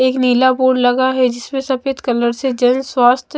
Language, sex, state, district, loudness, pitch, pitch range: Hindi, female, Maharashtra, Mumbai Suburban, -15 LUFS, 255 Hz, 245-265 Hz